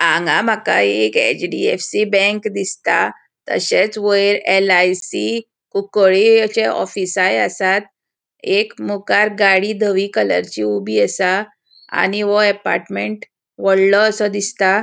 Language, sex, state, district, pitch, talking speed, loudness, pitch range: Konkani, female, Goa, North and South Goa, 200 Hz, 105 wpm, -16 LUFS, 185-210 Hz